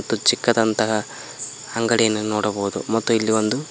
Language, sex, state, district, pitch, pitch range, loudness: Kannada, male, Karnataka, Koppal, 110 Hz, 105-115 Hz, -21 LUFS